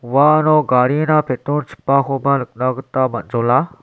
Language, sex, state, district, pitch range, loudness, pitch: Garo, male, Meghalaya, West Garo Hills, 125-150 Hz, -16 LUFS, 135 Hz